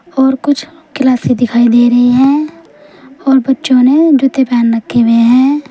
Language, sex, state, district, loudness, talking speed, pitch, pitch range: Hindi, female, Uttar Pradesh, Saharanpur, -10 LUFS, 160 wpm, 265 Hz, 245-285 Hz